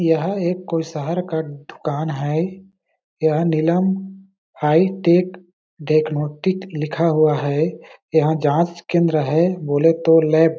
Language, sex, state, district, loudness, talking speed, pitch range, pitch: Hindi, male, Chhattisgarh, Balrampur, -19 LUFS, 130 wpm, 155-175 Hz, 165 Hz